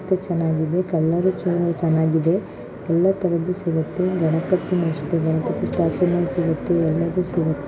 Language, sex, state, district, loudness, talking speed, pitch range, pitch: Kannada, female, Karnataka, Shimoga, -21 LUFS, 100 wpm, 160-180 Hz, 170 Hz